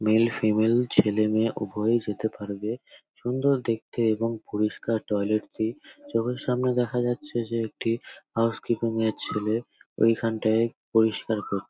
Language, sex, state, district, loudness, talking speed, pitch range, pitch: Bengali, male, West Bengal, North 24 Parganas, -26 LUFS, 130 wpm, 110-120 Hz, 115 Hz